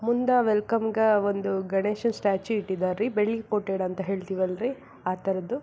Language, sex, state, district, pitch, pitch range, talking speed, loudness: Kannada, female, Karnataka, Belgaum, 205 Hz, 190-225 Hz, 160 wpm, -26 LUFS